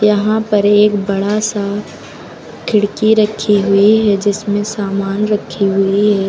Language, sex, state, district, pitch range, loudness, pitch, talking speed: Hindi, female, Uttar Pradesh, Lucknow, 200-210 Hz, -14 LUFS, 205 Hz, 135 wpm